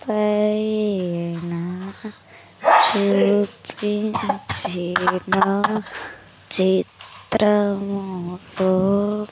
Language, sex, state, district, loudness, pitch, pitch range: Telugu, female, Andhra Pradesh, Sri Satya Sai, -21 LUFS, 195 Hz, 175-210 Hz